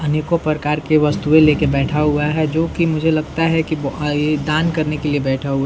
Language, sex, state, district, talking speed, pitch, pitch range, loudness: Hindi, male, Bihar, Saran, 245 wpm, 155 Hz, 150-155 Hz, -17 LUFS